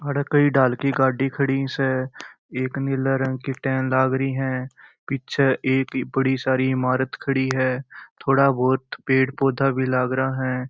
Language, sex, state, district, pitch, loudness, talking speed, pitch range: Marwari, male, Rajasthan, Churu, 135 Hz, -22 LUFS, 140 wpm, 130-135 Hz